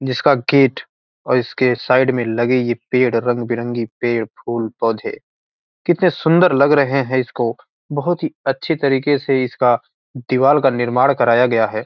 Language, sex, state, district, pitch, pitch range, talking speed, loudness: Hindi, male, Bihar, Gopalganj, 130 Hz, 120-140 Hz, 155 wpm, -17 LUFS